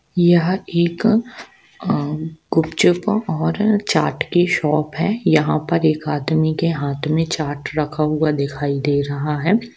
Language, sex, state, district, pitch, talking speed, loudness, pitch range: Hindi, female, Jharkhand, Sahebganj, 160 Hz, 135 wpm, -19 LUFS, 150-175 Hz